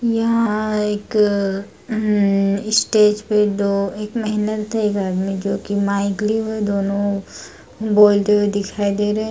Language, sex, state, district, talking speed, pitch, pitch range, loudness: Hindi, female, Bihar, Bhagalpur, 140 wpm, 210 Hz, 200-215 Hz, -18 LUFS